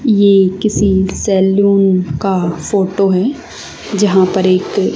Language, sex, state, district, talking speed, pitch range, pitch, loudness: Hindi, female, Haryana, Charkhi Dadri, 110 wpm, 185-200 Hz, 195 Hz, -13 LUFS